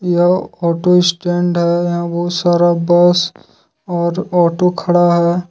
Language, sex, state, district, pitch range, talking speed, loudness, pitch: Hindi, male, Jharkhand, Ranchi, 170-175 Hz, 130 wpm, -14 LUFS, 175 Hz